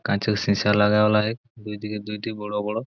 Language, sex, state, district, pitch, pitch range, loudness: Bengali, male, West Bengal, Purulia, 105 Hz, 105-110 Hz, -23 LUFS